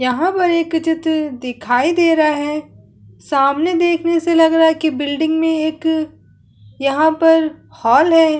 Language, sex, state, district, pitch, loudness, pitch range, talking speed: Hindi, female, Uttar Pradesh, Hamirpur, 315 Hz, -15 LUFS, 280-325 Hz, 155 wpm